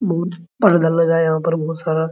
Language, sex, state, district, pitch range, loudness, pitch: Hindi, male, Bihar, Araria, 160-170 Hz, -17 LUFS, 165 Hz